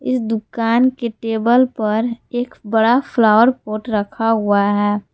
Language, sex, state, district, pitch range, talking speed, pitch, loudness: Hindi, female, Jharkhand, Palamu, 215-240 Hz, 140 wpm, 225 Hz, -17 LUFS